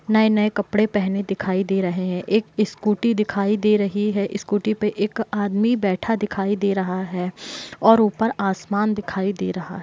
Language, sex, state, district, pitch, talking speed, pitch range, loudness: Hindi, female, Bihar, Muzaffarpur, 205 Hz, 185 wpm, 195-215 Hz, -21 LUFS